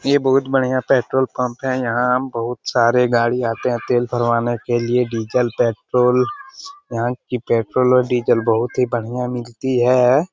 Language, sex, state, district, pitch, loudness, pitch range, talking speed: Hindi, male, Bihar, Lakhisarai, 125 Hz, -18 LUFS, 120-130 Hz, 175 wpm